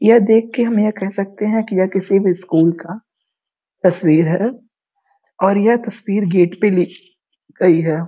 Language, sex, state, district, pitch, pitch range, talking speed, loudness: Hindi, female, Uttar Pradesh, Gorakhpur, 195 Hz, 180-230 Hz, 180 wpm, -16 LUFS